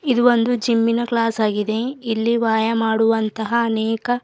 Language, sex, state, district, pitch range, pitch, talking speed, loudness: Kannada, female, Karnataka, Bidar, 220-235 Hz, 230 Hz, 140 wpm, -19 LUFS